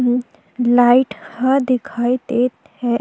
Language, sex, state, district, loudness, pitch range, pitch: Chhattisgarhi, female, Chhattisgarh, Jashpur, -17 LUFS, 240-255 Hz, 245 Hz